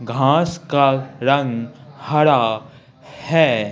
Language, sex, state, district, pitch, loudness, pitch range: Hindi, male, Bihar, Patna, 140 Hz, -18 LUFS, 125-150 Hz